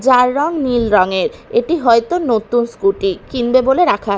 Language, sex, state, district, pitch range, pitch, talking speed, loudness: Bengali, female, Bihar, Katihar, 235-350 Hz, 255 Hz, 170 wpm, -15 LUFS